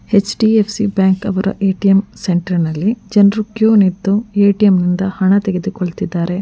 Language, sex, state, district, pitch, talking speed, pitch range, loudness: Kannada, female, Karnataka, Mysore, 195 Hz, 120 wpm, 185-205 Hz, -14 LUFS